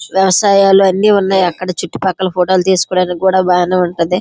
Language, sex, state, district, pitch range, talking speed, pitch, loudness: Telugu, female, Andhra Pradesh, Srikakulam, 180-190 Hz, 155 wpm, 185 Hz, -12 LUFS